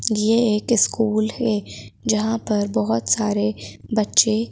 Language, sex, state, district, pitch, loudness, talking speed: Hindi, female, Madhya Pradesh, Bhopal, 215 Hz, -20 LUFS, 120 wpm